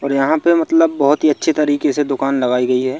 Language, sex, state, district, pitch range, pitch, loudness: Hindi, male, Madhya Pradesh, Bhopal, 135-160 Hz, 145 Hz, -15 LUFS